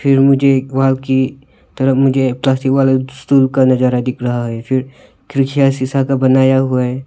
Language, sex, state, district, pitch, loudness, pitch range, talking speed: Hindi, male, Arunachal Pradesh, Lower Dibang Valley, 130 Hz, -14 LUFS, 130-135 Hz, 155 wpm